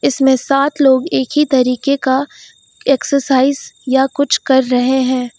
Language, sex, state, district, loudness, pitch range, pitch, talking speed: Hindi, female, Uttar Pradesh, Lucknow, -14 LUFS, 260-280 Hz, 265 Hz, 145 wpm